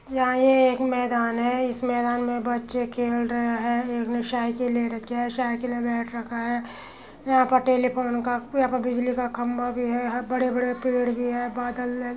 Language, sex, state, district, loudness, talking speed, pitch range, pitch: Hindi, female, Uttar Pradesh, Muzaffarnagar, -25 LUFS, 230 wpm, 240-250 Hz, 245 Hz